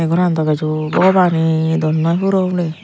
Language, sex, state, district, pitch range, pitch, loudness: Chakma, female, Tripura, Unakoti, 160-180 Hz, 165 Hz, -15 LUFS